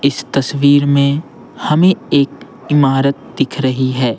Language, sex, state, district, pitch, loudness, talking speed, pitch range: Hindi, male, Bihar, Patna, 140 Hz, -14 LUFS, 130 wpm, 135-145 Hz